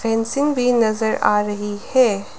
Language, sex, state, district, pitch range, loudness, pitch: Hindi, female, Arunachal Pradesh, Lower Dibang Valley, 210-250 Hz, -19 LUFS, 225 Hz